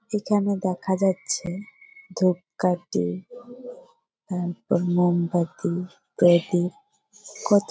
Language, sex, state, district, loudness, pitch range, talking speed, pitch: Bengali, female, West Bengal, Jalpaiguri, -24 LUFS, 175-210 Hz, 70 wpm, 185 Hz